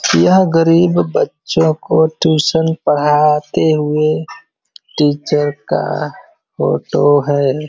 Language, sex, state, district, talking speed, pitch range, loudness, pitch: Hindi, male, Uttar Pradesh, Varanasi, 85 wpm, 150-160 Hz, -14 LUFS, 155 Hz